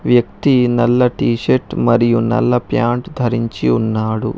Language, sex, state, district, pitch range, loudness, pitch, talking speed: Telugu, male, Telangana, Hyderabad, 110-125 Hz, -15 LUFS, 120 Hz, 125 wpm